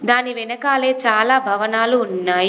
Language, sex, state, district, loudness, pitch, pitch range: Telugu, female, Telangana, Komaram Bheem, -17 LUFS, 235 Hz, 215-250 Hz